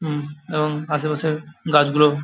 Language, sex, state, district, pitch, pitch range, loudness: Bengali, male, West Bengal, Paschim Medinipur, 150 Hz, 150-155 Hz, -21 LUFS